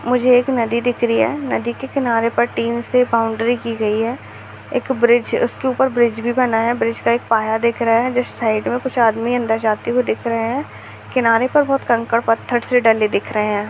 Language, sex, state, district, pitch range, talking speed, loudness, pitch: Hindi, female, Bihar, Bhagalpur, 230-250 Hz, 230 wpm, -17 LUFS, 235 Hz